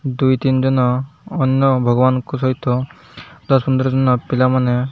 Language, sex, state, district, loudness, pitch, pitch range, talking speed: Odia, male, Odisha, Malkangiri, -17 LUFS, 130 Hz, 125-135 Hz, 145 wpm